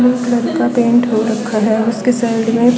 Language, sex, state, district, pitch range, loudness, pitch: Hindi, female, Haryana, Charkhi Dadri, 225-245 Hz, -14 LUFS, 235 Hz